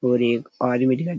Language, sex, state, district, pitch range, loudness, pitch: Rajasthani, male, Rajasthan, Churu, 125-130 Hz, -22 LUFS, 125 Hz